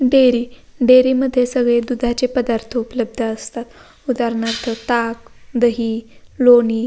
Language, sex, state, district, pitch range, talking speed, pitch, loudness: Marathi, female, Maharashtra, Pune, 230-250 Hz, 115 wpm, 240 Hz, -17 LUFS